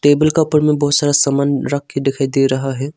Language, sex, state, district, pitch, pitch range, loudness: Hindi, male, Arunachal Pradesh, Longding, 140 Hz, 135-145 Hz, -15 LUFS